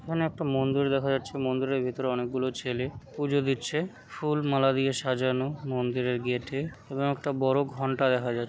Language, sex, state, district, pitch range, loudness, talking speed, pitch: Bengali, male, West Bengal, Kolkata, 130-140 Hz, -29 LUFS, 170 wpm, 135 Hz